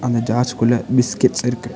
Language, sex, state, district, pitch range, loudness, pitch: Tamil, male, Tamil Nadu, Nilgiris, 120-125 Hz, -18 LUFS, 120 Hz